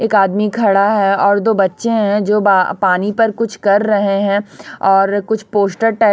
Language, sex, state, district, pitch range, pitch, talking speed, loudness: Hindi, female, Chhattisgarh, Raipur, 200-220 Hz, 205 Hz, 195 wpm, -14 LUFS